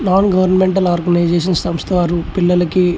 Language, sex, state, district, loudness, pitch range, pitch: Telugu, male, Andhra Pradesh, Chittoor, -15 LUFS, 175-185 Hz, 180 Hz